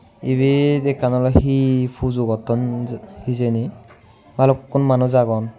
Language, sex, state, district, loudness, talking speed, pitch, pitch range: Chakma, male, Tripura, Unakoti, -18 LUFS, 95 wpm, 125 Hz, 115-130 Hz